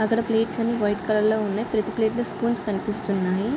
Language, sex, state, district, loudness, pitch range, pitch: Telugu, female, Andhra Pradesh, Srikakulam, -24 LUFS, 205-230 Hz, 215 Hz